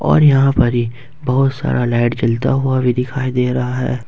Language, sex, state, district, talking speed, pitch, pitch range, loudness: Hindi, male, Jharkhand, Ranchi, 190 wpm, 125 Hz, 125-135 Hz, -16 LUFS